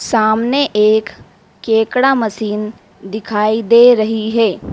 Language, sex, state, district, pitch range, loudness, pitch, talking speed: Hindi, female, Madhya Pradesh, Dhar, 210-230 Hz, -13 LUFS, 220 Hz, 100 wpm